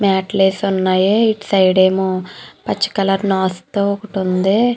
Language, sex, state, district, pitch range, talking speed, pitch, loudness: Telugu, female, Andhra Pradesh, Chittoor, 185-200 Hz, 165 wpm, 195 Hz, -16 LUFS